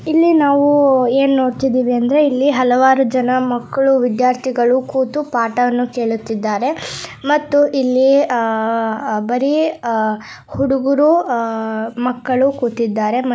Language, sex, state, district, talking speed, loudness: Kannada, female, Karnataka, Raichur, 100 wpm, -16 LUFS